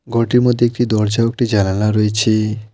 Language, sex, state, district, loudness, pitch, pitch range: Bengali, male, West Bengal, Alipurduar, -16 LUFS, 110 Hz, 105-120 Hz